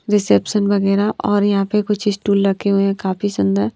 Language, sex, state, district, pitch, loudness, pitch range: Hindi, female, Punjab, Pathankot, 200 Hz, -17 LUFS, 195-205 Hz